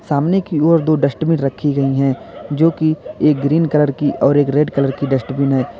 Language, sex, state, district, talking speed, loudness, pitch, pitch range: Hindi, male, Uttar Pradesh, Lalitpur, 205 wpm, -16 LUFS, 145 Hz, 140-155 Hz